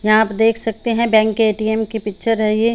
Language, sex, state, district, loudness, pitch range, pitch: Hindi, female, Haryana, Charkhi Dadri, -17 LUFS, 215-225 Hz, 220 Hz